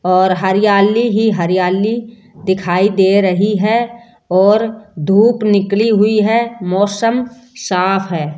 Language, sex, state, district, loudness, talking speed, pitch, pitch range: Hindi, female, Rajasthan, Jaipur, -14 LUFS, 115 wpm, 205 Hz, 190-225 Hz